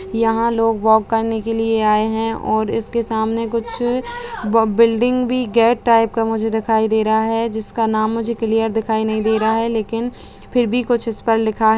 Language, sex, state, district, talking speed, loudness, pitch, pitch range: Hindi, female, Bihar, Begusarai, 210 wpm, -18 LUFS, 225 Hz, 220-230 Hz